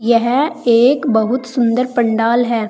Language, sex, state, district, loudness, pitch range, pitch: Hindi, female, Uttar Pradesh, Saharanpur, -15 LUFS, 230-250 Hz, 240 Hz